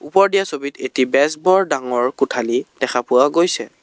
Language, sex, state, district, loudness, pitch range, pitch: Assamese, male, Assam, Kamrup Metropolitan, -17 LUFS, 135-185 Hz, 145 Hz